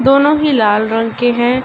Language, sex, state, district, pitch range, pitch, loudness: Hindi, female, Uttar Pradesh, Ghazipur, 225-275 Hz, 245 Hz, -13 LUFS